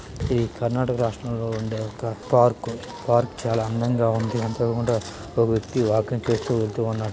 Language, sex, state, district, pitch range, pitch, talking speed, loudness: Telugu, male, Karnataka, Dharwad, 110-120 Hz, 115 Hz, 150 wpm, -24 LUFS